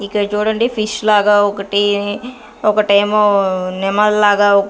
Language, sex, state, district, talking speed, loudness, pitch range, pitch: Telugu, female, Andhra Pradesh, Sri Satya Sai, 90 wpm, -14 LUFS, 200-210 Hz, 205 Hz